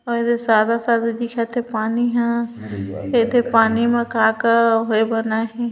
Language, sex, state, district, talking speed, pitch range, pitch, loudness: Chhattisgarhi, female, Chhattisgarh, Bilaspur, 155 wpm, 225-235 Hz, 230 Hz, -19 LUFS